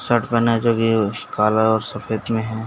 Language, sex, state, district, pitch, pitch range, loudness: Hindi, male, Chhattisgarh, Bastar, 110 Hz, 110-115 Hz, -19 LUFS